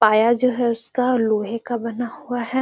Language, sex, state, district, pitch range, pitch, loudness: Magahi, female, Bihar, Gaya, 230-245 Hz, 240 Hz, -21 LUFS